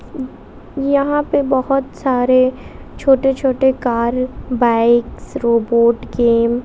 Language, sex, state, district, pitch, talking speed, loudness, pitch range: Hindi, female, Bihar, West Champaran, 255 Hz, 100 wpm, -16 LUFS, 235-270 Hz